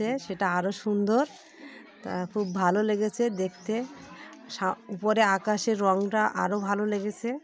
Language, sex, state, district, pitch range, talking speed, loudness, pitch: Bengali, female, West Bengal, North 24 Parganas, 200-230 Hz, 130 wpm, -27 LUFS, 210 Hz